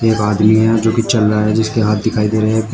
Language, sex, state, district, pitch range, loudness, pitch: Hindi, male, Uttar Pradesh, Shamli, 105-110 Hz, -14 LUFS, 110 Hz